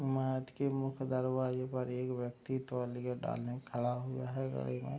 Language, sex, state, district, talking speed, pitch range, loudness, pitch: Hindi, male, Bihar, Madhepura, 170 wpm, 125-130 Hz, -38 LUFS, 130 Hz